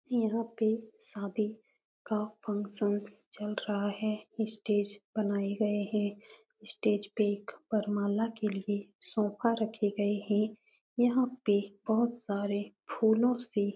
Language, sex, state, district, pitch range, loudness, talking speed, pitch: Hindi, female, Uttar Pradesh, Etah, 205-220 Hz, -32 LUFS, 125 wpm, 210 Hz